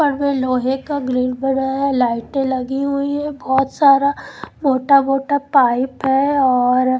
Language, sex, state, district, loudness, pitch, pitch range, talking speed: Hindi, female, Chandigarh, Chandigarh, -17 LUFS, 270 Hz, 255-280 Hz, 165 wpm